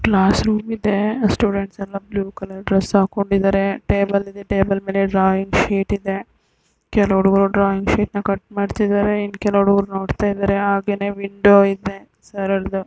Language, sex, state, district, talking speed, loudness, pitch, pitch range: Kannada, female, Karnataka, Dakshina Kannada, 130 wpm, -18 LUFS, 200 Hz, 195-205 Hz